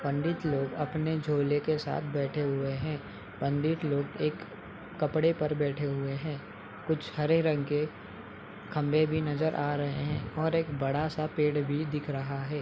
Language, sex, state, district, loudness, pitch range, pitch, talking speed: Hindi, male, Uttar Pradesh, Hamirpur, -31 LUFS, 140-155 Hz, 150 Hz, 165 wpm